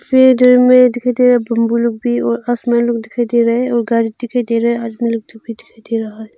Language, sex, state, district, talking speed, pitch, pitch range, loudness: Hindi, female, Arunachal Pradesh, Longding, 265 wpm, 235 Hz, 230-245 Hz, -14 LUFS